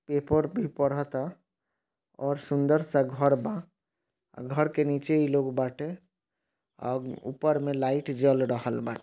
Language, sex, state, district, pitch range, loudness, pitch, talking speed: Bhojpuri, male, Bihar, East Champaran, 135-155 Hz, -28 LUFS, 145 Hz, 140 wpm